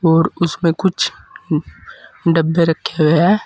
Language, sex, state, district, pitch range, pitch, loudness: Hindi, male, Uttar Pradesh, Saharanpur, 165-175 Hz, 165 Hz, -16 LUFS